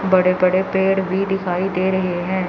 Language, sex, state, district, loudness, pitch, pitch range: Hindi, female, Chandigarh, Chandigarh, -18 LUFS, 190 Hz, 185-190 Hz